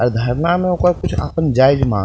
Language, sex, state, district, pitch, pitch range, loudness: Maithili, male, Bihar, Purnia, 140 Hz, 120-175 Hz, -16 LUFS